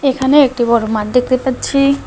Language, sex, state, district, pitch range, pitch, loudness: Bengali, male, West Bengal, Alipurduar, 240-275 Hz, 260 Hz, -13 LUFS